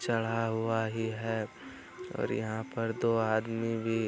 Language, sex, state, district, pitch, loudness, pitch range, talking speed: Hindi, male, Bihar, Araria, 115 Hz, -32 LUFS, 110-115 Hz, 160 wpm